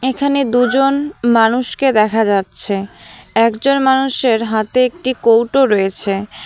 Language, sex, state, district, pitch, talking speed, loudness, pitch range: Bengali, female, West Bengal, Cooch Behar, 240 Hz, 100 wpm, -14 LUFS, 220-265 Hz